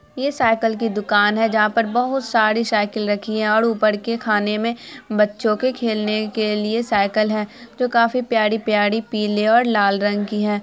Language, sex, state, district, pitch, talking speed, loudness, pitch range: Hindi, female, Bihar, Araria, 215 Hz, 205 wpm, -19 LUFS, 210-230 Hz